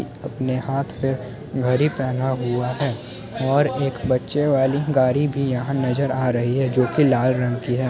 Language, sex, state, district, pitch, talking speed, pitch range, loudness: Hindi, male, Bihar, Muzaffarpur, 130 Hz, 190 wpm, 125-140 Hz, -21 LUFS